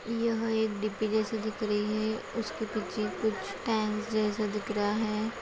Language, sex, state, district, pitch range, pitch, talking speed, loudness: Hindi, female, Chhattisgarh, Raigarh, 215-220 Hz, 215 Hz, 165 wpm, -31 LUFS